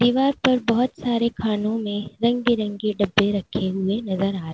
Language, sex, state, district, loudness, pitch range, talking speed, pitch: Hindi, female, Uttar Pradesh, Lalitpur, -22 LUFS, 200-240 Hz, 185 wpm, 215 Hz